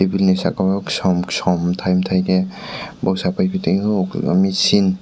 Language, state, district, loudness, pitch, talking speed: Kokborok, Tripura, West Tripura, -18 LUFS, 95 Hz, 145 wpm